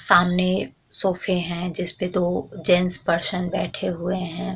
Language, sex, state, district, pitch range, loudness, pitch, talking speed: Hindi, female, Bihar, Vaishali, 175-185 Hz, -22 LUFS, 180 Hz, 130 wpm